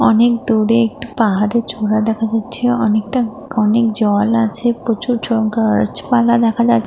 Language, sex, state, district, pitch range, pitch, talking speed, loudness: Bengali, female, Jharkhand, Jamtara, 220-235 Hz, 225 Hz, 140 wpm, -15 LUFS